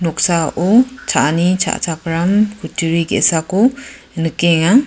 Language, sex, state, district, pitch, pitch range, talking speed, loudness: Garo, female, Meghalaya, West Garo Hills, 170 Hz, 165-210 Hz, 75 wpm, -15 LUFS